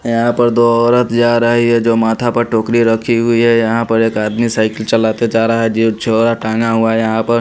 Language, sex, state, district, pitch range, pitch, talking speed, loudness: Hindi, male, Haryana, Rohtak, 115-120 Hz, 115 Hz, 245 wpm, -13 LUFS